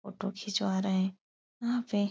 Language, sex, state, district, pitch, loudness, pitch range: Hindi, female, Uttar Pradesh, Etah, 200 Hz, -32 LUFS, 195-205 Hz